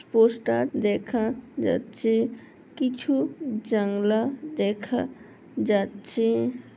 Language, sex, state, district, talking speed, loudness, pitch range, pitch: Bengali, female, West Bengal, Purulia, 60 wpm, -26 LUFS, 205-255 Hz, 225 Hz